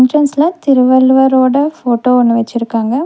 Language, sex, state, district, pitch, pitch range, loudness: Tamil, female, Tamil Nadu, Nilgiris, 260 Hz, 245-285 Hz, -11 LUFS